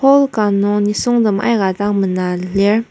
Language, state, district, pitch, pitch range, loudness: Ao, Nagaland, Kohima, 205 Hz, 195-230 Hz, -15 LUFS